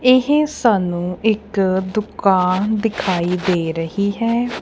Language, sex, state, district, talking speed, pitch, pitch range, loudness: Punjabi, female, Punjab, Kapurthala, 105 wpm, 200 Hz, 180-225 Hz, -18 LUFS